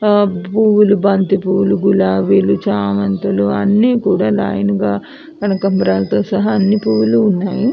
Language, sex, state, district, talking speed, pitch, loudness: Telugu, female, Andhra Pradesh, Anantapur, 125 wpm, 190 Hz, -14 LUFS